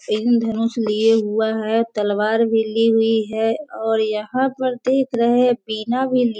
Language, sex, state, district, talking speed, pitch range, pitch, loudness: Hindi, female, Bihar, Sitamarhi, 180 wpm, 220-240 Hz, 225 Hz, -19 LUFS